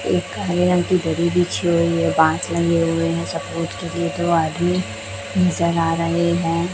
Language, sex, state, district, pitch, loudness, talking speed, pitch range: Hindi, male, Chhattisgarh, Raipur, 170 Hz, -20 LUFS, 185 wpm, 165-175 Hz